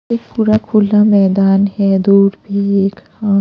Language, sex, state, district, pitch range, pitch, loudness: Hindi, female, Punjab, Pathankot, 195-210 Hz, 200 Hz, -13 LUFS